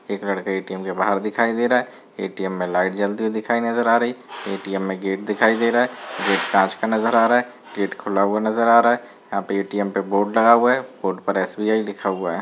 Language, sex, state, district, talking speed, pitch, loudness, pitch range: Hindi, male, Bihar, Darbhanga, 255 wpm, 105 Hz, -20 LUFS, 95-115 Hz